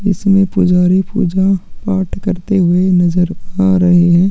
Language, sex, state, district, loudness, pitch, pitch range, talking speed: Hindi, male, Chhattisgarh, Sukma, -13 LUFS, 185 Hz, 180-195 Hz, 125 wpm